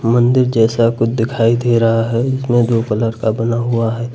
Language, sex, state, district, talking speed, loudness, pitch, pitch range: Hindi, male, Uttar Pradesh, Lucknow, 200 wpm, -15 LUFS, 115 Hz, 115-120 Hz